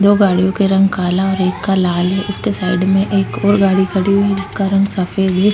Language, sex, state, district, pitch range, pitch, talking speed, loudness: Hindi, female, Maharashtra, Aurangabad, 185-200 Hz, 195 Hz, 250 wpm, -15 LUFS